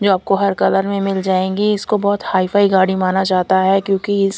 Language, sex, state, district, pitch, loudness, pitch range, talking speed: Hindi, female, Bihar, Katihar, 195 Hz, -16 LUFS, 190-200 Hz, 235 wpm